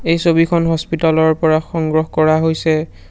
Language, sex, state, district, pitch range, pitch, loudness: Assamese, male, Assam, Sonitpur, 155-165 Hz, 160 Hz, -15 LUFS